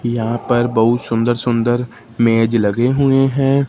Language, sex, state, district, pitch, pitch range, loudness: Hindi, male, Punjab, Fazilka, 120 Hz, 115-125 Hz, -16 LUFS